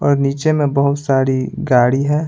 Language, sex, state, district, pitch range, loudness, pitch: Hindi, male, Bihar, Patna, 135-145 Hz, -16 LUFS, 140 Hz